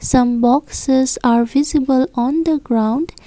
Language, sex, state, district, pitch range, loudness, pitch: English, female, Assam, Kamrup Metropolitan, 240-285 Hz, -16 LUFS, 260 Hz